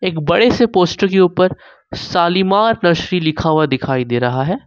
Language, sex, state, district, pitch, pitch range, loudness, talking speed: Hindi, male, Jharkhand, Ranchi, 175 Hz, 155-190 Hz, -15 LUFS, 180 wpm